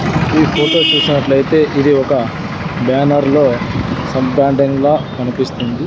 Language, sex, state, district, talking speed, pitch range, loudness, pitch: Telugu, male, Andhra Pradesh, Sri Satya Sai, 90 wpm, 135-155 Hz, -13 LUFS, 145 Hz